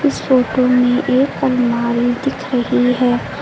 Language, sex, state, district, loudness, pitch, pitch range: Hindi, female, Uttar Pradesh, Lucknow, -15 LUFS, 250 Hz, 245-260 Hz